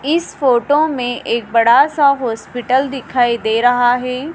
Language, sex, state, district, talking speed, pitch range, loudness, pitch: Hindi, female, Madhya Pradesh, Dhar, 150 wpm, 240-280 Hz, -15 LUFS, 250 Hz